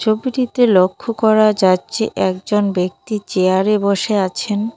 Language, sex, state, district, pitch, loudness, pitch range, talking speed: Bengali, female, West Bengal, Cooch Behar, 210 Hz, -16 LUFS, 190-220 Hz, 125 wpm